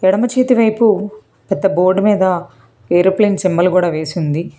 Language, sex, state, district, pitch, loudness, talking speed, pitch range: Telugu, female, Telangana, Hyderabad, 185 Hz, -14 LUFS, 145 wpm, 175-210 Hz